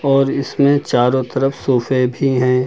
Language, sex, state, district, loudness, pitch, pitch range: Hindi, male, Uttar Pradesh, Lucknow, -16 LUFS, 135 Hz, 125-140 Hz